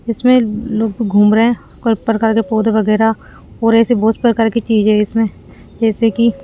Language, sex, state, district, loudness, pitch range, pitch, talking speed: Hindi, female, Rajasthan, Jaipur, -14 LUFS, 220-230 Hz, 225 Hz, 185 wpm